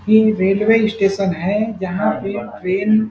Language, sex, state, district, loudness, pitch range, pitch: Hindi, male, Chhattisgarh, Bastar, -17 LUFS, 195-215 Hz, 205 Hz